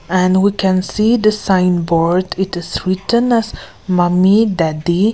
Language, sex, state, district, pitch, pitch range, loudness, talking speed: English, female, Nagaland, Kohima, 185 Hz, 175-210 Hz, -15 LUFS, 150 wpm